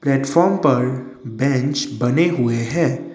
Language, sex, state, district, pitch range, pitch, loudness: Hindi, male, Assam, Kamrup Metropolitan, 125-150 Hz, 135 Hz, -18 LUFS